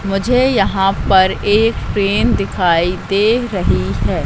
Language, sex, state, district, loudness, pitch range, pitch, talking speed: Hindi, female, Madhya Pradesh, Katni, -15 LUFS, 165-205 Hz, 195 Hz, 125 wpm